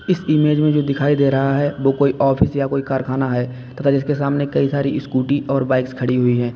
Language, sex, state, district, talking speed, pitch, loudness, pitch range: Hindi, male, Uttar Pradesh, Lalitpur, 240 wpm, 140 Hz, -18 LUFS, 130-145 Hz